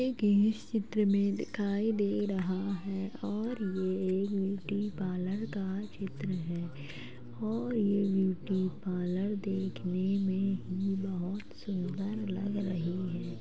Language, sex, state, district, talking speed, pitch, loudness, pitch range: Hindi, female, Uttar Pradesh, Jalaun, 125 wpm, 195 Hz, -33 LUFS, 185-205 Hz